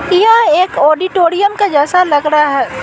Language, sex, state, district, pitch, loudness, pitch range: Hindi, female, Bihar, Patna, 355 Hz, -11 LUFS, 300-390 Hz